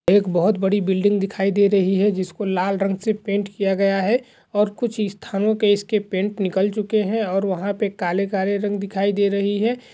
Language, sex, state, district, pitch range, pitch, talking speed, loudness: Hindi, male, Bihar, Gaya, 195-210 Hz, 200 Hz, 215 wpm, -21 LUFS